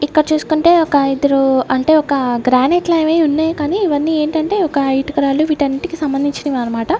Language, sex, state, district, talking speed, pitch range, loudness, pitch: Telugu, female, Andhra Pradesh, Sri Satya Sai, 155 wpm, 275-315 Hz, -15 LUFS, 295 Hz